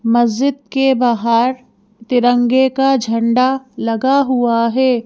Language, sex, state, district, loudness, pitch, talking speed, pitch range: Hindi, female, Madhya Pradesh, Bhopal, -15 LUFS, 245 Hz, 105 wpm, 230-265 Hz